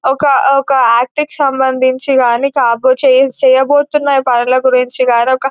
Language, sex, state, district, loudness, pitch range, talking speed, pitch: Telugu, female, Telangana, Nalgonda, -11 LUFS, 255-275 Hz, 120 wpm, 265 Hz